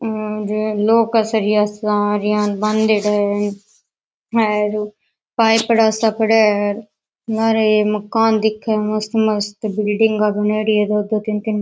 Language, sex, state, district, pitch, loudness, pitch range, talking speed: Rajasthani, female, Rajasthan, Nagaur, 215 Hz, -17 LUFS, 210-220 Hz, 130 wpm